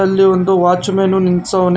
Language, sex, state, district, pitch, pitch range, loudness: Kannada, male, Karnataka, Bangalore, 190 Hz, 180-195 Hz, -13 LUFS